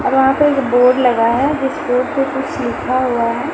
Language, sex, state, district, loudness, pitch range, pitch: Hindi, female, Bihar, Patna, -15 LUFS, 245-275 Hz, 265 Hz